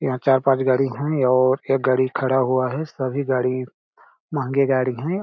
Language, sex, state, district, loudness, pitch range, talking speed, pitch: Hindi, male, Chhattisgarh, Balrampur, -21 LUFS, 130-135 Hz, 195 wpm, 130 Hz